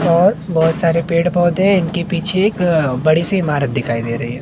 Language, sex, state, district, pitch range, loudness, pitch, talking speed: Hindi, male, Maharashtra, Mumbai Suburban, 155-180 Hz, -16 LUFS, 170 Hz, 215 wpm